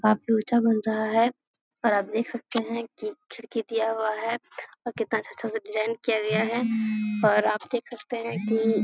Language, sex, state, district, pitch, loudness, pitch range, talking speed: Hindi, female, Bihar, Jahanabad, 225 Hz, -27 LUFS, 215-235 Hz, 210 wpm